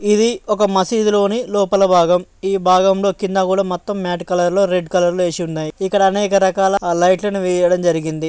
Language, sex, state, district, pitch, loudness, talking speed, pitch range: Telugu, male, Andhra Pradesh, Krishna, 190 Hz, -16 LUFS, 165 wpm, 180-200 Hz